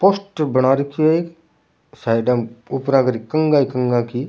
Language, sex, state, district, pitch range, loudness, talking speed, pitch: Rajasthani, male, Rajasthan, Churu, 125-155 Hz, -18 LUFS, 180 wpm, 135 Hz